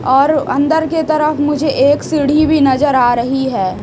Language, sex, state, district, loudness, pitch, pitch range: Hindi, female, Chhattisgarh, Raipur, -13 LUFS, 290 Hz, 265-305 Hz